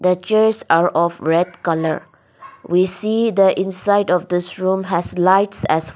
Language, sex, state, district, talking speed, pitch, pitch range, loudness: English, female, Nagaland, Dimapur, 180 wpm, 180 Hz, 170-200 Hz, -17 LUFS